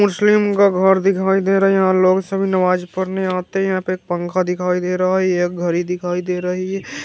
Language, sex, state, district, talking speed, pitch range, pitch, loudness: Hindi, male, Bihar, Vaishali, 255 wpm, 180-195 Hz, 185 Hz, -17 LUFS